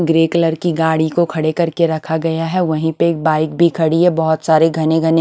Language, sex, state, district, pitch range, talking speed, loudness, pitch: Hindi, female, Maharashtra, Gondia, 160-170 Hz, 240 wpm, -15 LUFS, 160 Hz